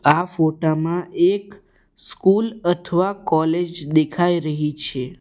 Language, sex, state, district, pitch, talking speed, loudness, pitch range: Gujarati, male, Gujarat, Valsad, 175 Hz, 115 wpm, -20 LUFS, 155-180 Hz